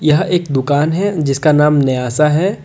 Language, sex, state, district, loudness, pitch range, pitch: Hindi, male, Jharkhand, Deoghar, -14 LUFS, 145-165 Hz, 150 Hz